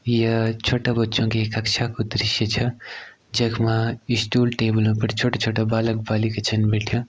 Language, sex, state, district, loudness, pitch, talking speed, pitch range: Garhwali, male, Uttarakhand, Tehri Garhwal, -22 LUFS, 115 Hz, 145 wpm, 110-120 Hz